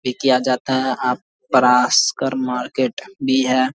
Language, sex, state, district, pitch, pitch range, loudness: Hindi, male, Bihar, Vaishali, 130 Hz, 125-130 Hz, -18 LUFS